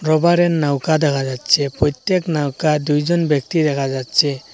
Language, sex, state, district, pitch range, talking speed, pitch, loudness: Bengali, male, Assam, Hailakandi, 140-160 Hz, 130 wpm, 150 Hz, -17 LUFS